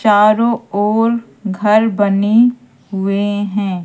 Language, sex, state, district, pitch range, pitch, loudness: Hindi, female, Madhya Pradesh, Katni, 205-225 Hz, 210 Hz, -14 LUFS